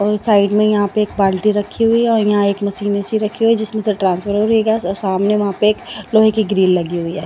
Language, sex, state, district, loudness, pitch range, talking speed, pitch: Hindi, female, Odisha, Malkangiri, -16 LUFS, 200-220 Hz, 295 wpm, 210 Hz